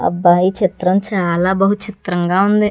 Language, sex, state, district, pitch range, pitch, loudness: Telugu, female, Andhra Pradesh, Chittoor, 180-200 Hz, 190 Hz, -15 LUFS